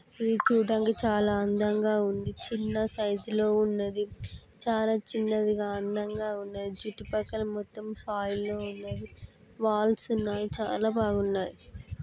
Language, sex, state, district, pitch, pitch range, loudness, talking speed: Telugu, female, Telangana, Nalgonda, 210 Hz, 205-220 Hz, -30 LUFS, 120 wpm